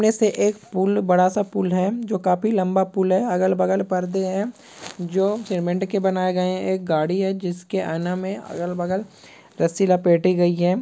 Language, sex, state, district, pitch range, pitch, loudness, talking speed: Hindi, female, Bihar, East Champaran, 180-195 Hz, 185 Hz, -21 LUFS, 190 wpm